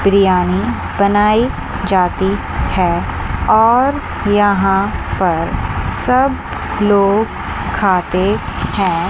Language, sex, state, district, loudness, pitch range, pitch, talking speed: Hindi, female, Chandigarh, Chandigarh, -15 LUFS, 180-210 Hz, 195 Hz, 70 wpm